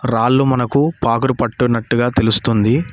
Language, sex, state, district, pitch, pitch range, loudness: Telugu, male, Telangana, Mahabubabad, 120 Hz, 115-130 Hz, -16 LUFS